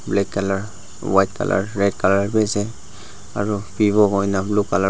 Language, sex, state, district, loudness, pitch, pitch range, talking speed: Nagamese, male, Nagaland, Dimapur, -20 LUFS, 100 Hz, 95-105 Hz, 170 wpm